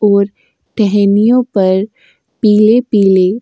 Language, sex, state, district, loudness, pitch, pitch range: Hindi, female, Uttar Pradesh, Jyotiba Phule Nagar, -11 LUFS, 205 Hz, 200-225 Hz